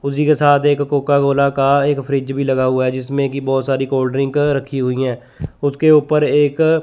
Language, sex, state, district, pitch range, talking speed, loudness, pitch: Hindi, male, Chandigarh, Chandigarh, 135-145 Hz, 230 wpm, -16 LUFS, 140 Hz